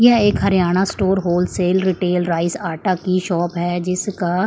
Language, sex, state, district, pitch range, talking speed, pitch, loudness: Hindi, female, Chandigarh, Chandigarh, 175-190 Hz, 160 wpm, 180 Hz, -18 LUFS